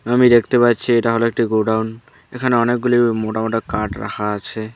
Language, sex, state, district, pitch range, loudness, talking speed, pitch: Bengali, male, West Bengal, Alipurduar, 110-120 Hz, -17 LUFS, 175 wpm, 115 Hz